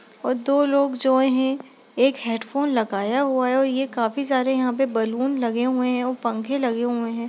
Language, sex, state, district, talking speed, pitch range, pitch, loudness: Hindi, female, Bihar, Darbhanga, 205 wpm, 235-270 Hz, 255 Hz, -22 LUFS